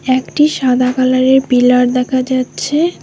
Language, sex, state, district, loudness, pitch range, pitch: Bengali, female, West Bengal, Alipurduar, -13 LUFS, 250-265 Hz, 255 Hz